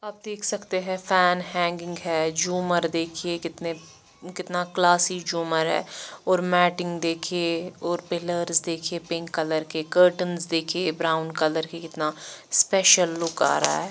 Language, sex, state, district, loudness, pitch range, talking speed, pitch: Hindi, female, Chandigarh, Chandigarh, -24 LUFS, 165-180 Hz, 145 wpm, 175 Hz